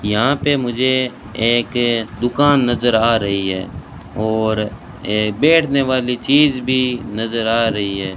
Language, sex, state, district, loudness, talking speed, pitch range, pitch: Hindi, male, Rajasthan, Bikaner, -17 LUFS, 140 wpm, 105-130 Hz, 115 Hz